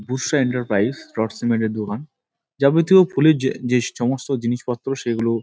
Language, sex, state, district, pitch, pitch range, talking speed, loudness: Bengali, male, West Bengal, Dakshin Dinajpur, 125 Hz, 115-135 Hz, 145 wpm, -20 LUFS